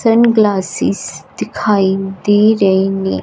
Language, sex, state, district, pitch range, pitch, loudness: Hindi, female, Punjab, Fazilka, 190-215 Hz, 200 Hz, -14 LUFS